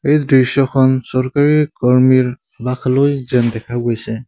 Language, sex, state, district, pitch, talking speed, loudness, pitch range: Assamese, male, Assam, Sonitpur, 130 Hz, 100 wpm, -15 LUFS, 125-140 Hz